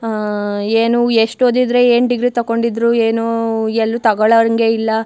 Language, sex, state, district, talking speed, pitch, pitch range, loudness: Kannada, female, Karnataka, Chamarajanagar, 140 wpm, 230 Hz, 225-235 Hz, -14 LUFS